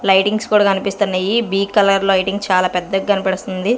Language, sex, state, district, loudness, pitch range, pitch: Telugu, female, Andhra Pradesh, Sri Satya Sai, -16 LUFS, 190-205 Hz, 195 Hz